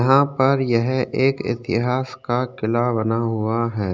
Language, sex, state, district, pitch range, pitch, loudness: Hindi, male, Uttarakhand, Tehri Garhwal, 115-130 Hz, 120 Hz, -21 LUFS